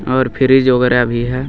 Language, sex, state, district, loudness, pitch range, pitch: Hindi, male, Jharkhand, Garhwa, -13 LUFS, 125-130 Hz, 125 Hz